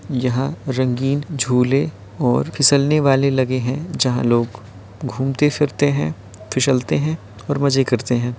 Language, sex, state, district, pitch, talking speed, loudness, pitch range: Hindi, male, Uttar Pradesh, Varanasi, 130 Hz, 130 wpm, -19 LUFS, 125-140 Hz